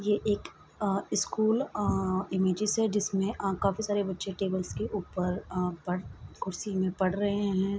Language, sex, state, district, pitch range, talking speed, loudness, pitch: Hindi, female, Bihar, Bhagalpur, 185-205 Hz, 170 wpm, -30 LUFS, 195 Hz